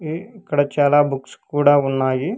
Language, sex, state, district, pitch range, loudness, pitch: Telugu, male, Telangana, Hyderabad, 140-160 Hz, -18 LUFS, 145 Hz